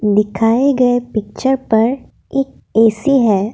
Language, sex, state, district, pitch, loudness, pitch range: Hindi, female, Assam, Kamrup Metropolitan, 225 Hz, -15 LUFS, 215-265 Hz